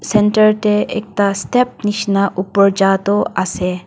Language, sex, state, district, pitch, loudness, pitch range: Nagamese, female, Nagaland, Dimapur, 205 Hz, -15 LUFS, 195-210 Hz